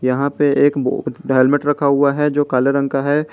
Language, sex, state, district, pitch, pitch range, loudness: Hindi, male, Jharkhand, Garhwa, 140 Hz, 135-145 Hz, -16 LUFS